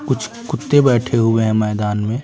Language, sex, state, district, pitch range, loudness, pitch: Hindi, male, Bihar, Patna, 110-130 Hz, -17 LUFS, 115 Hz